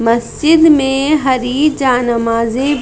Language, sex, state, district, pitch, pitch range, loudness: Hindi, female, Madhya Pradesh, Bhopal, 265 Hz, 240-295 Hz, -12 LUFS